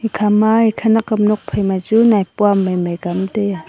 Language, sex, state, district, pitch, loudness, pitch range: Wancho, female, Arunachal Pradesh, Longding, 210 Hz, -15 LUFS, 190-220 Hz